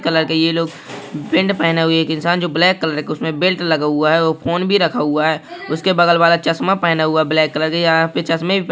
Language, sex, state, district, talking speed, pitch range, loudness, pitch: Hindi, male, Maharashtra, Pune, 240 wpm, 155-170 Hz, -16 LUFS, 165 Hz